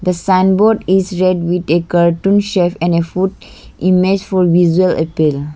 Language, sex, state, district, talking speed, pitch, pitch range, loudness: English, female, Arunachal Pradesh, Lower Dibang Valley, 160 wpm, 180 Hz, 170-190 Hz, -14 LUFS